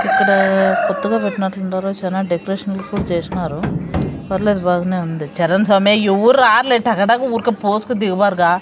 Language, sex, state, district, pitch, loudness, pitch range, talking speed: Telugu, female, Andhra Pradesh, Sri Satya Sai, 195 Hz, -16 LUFS, 185-205 Hz, 65 wpm